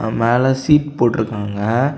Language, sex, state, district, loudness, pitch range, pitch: Tamil, male, Tamil Nadu, Kanyakumari, -17 LUFS, 110-130 Hz, 120 Hz